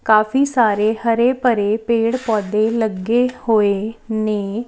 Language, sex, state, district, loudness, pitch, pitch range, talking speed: Punjabi, female, Chandigarh, Chandigarh, -17 LUFS, 220 Hz, 215-235 Hz, 115 wpm